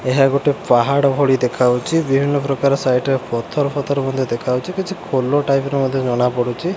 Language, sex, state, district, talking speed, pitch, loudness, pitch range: Odia, male, Odisha, Khordha, 170 wpm, 135 Hz, -17 LUFS, 125-140 Hz